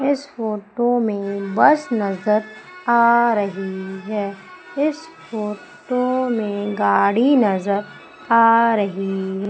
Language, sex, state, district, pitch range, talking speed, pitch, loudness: Hindi, female, Madhya Pradesh, Umaria, 200-245 Hz, 95 wpm, 215 Hz, -19 LUFS